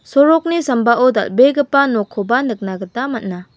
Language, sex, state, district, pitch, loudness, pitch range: Garo, female, Meghalaya, West Garo Hills, 245 Hz, -15 LUFS, 205-275 Hz